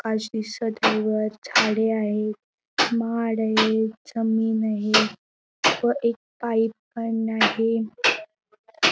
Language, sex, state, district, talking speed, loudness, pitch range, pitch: Marathi, female, Maharashtra, Sindhudurg, 100 wpm, -23 LUFS, 215-230 Hz, 225 Hz